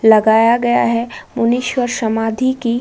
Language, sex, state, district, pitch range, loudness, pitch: Hindi, female, Uttar Pradesh, Budaun, 225-245 Hz, -15 LUFS, 235 Hz